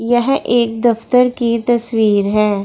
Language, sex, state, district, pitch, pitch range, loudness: Hindi, female, Bihar, Darbhanga, 235 Hz, 220-240 Hz, -15 LUFS